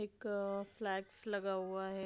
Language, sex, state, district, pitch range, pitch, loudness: Hindi, female, Bihar, Madhepura, 190-205 Hz, 200 Hz, -40 LUFS